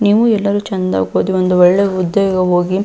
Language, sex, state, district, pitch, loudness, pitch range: Kannada, female, Karnataka, Belgaum, 190 Hz, -14 LUFS, 180-200 Hz